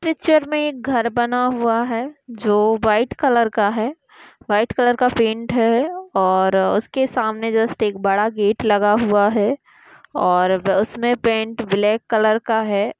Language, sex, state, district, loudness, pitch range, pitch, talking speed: Hindi, female, Chhattisgarh, Kabirdham, -18 LUFS, 210-245 Hz, 225 Hz, 150 wpm